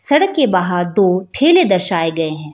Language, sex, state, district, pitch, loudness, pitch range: Hindi, female, Bihar, Jahanabad, 185 Hz, -14 LUFS, 165-265 Hz